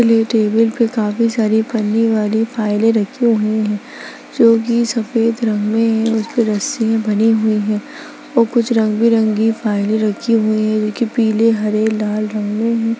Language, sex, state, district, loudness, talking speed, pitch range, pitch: Hindi, female, Bihar, Darbhanga, -16 LUFS, 175 wpm, 215-230 Hz, 220 Hz